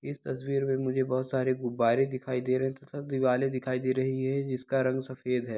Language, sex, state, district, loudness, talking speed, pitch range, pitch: Hindi, male, Bihar, Samastipur, -29 LUFS, 225 wpm, 130-135 Hz, 130 Hz